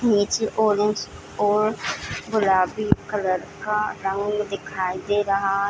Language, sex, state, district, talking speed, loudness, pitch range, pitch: Hindi, female, Bihar, Jamui, 105 wpm, -23 LUFS, 195-210 Hz, 205 Hz